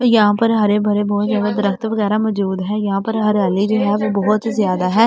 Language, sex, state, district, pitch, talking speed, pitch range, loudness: Hindi, female, Delhi, New Delhi, 210 Hz, 225 wpm, 200-215 Hz, -17 LUFS